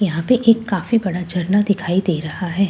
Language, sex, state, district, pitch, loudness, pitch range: Hindi, female, Bihar, Katihar, 190 Hz, -18 LUFS, 175-205 Hz